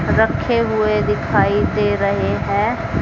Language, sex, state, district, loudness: Hindi, female, Haryana, Jhajjar, -17 LUFS